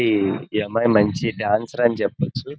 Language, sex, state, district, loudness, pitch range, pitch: Telugu, male, Andhra Pradesh, Krishna, -21 LUFS, 105-120 Hz, 115 Hz